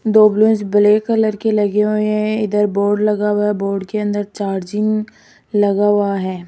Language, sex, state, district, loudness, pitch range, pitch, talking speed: Hindi, female, Rajasthan, Jaipur, -16 LUFS, 205-215 Hz, 210 Hz, 185 wpm